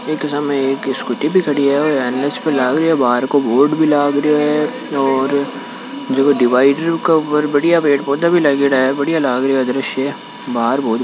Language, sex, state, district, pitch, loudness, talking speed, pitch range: Hindi, male, Rajasthan, Nagaur, 140 Hz, -15 LUFS, 180 wpm, 135-150 Hz